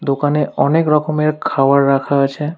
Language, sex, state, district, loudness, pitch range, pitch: Bengali, male, West Bengal, Alipurduar, -15 LUFS, 140-150 Hz, 145 Hz